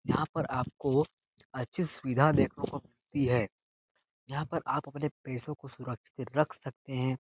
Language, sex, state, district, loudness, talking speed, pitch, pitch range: Hindi, male, Bihar, Jahanabad, -32 LUFS, 155 wpm, 135 Hz, 125-150 Hz